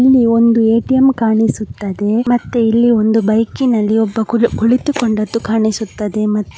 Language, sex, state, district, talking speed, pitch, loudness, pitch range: Kannada, male, Karnataka, Mysore, 135 wpm, 225 Hz, -14 LUFS, 220-235 Hz